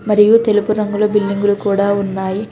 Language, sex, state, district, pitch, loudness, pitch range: Telugu, female, Telangana, Hyderabad, 210 Hz, -15 LUFS, 200-210 Hz